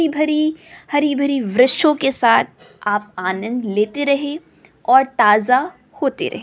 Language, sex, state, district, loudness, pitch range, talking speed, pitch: Hindi, female, Bihar, West Champaran, -17 LUFS, 230-290 Hz, 140 wpm, 270 Hz